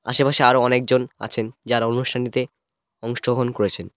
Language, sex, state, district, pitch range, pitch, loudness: Bengali, male, West Bengal, Cooch Behar, 115-125 Hz, 125 Hz, -20 LUFS